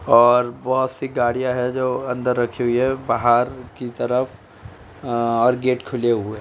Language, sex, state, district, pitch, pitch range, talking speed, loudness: Hindi, male, Uttar Pradesh, Etah, 125 Hz, 120-130 Hz, 180 wpm, -20 LUFS